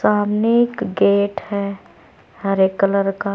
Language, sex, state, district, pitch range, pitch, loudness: Hindi, female, Uttar Pradesh, Saharanpur, 195-210 Hz, 200 Hz, -18 LUFS